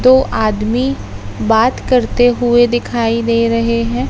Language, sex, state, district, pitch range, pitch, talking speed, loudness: Hindi, female, Madhya Pradesh, Katni, 225-245 Hz, 230 Hz, 130 wpm, -14 LUFS